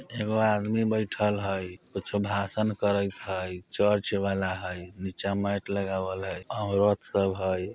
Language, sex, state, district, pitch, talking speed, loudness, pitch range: Bajjika, male, Bihar, Vaishali, 100 Hz, 140 wpm, -28 LUFS, 95-105 Hz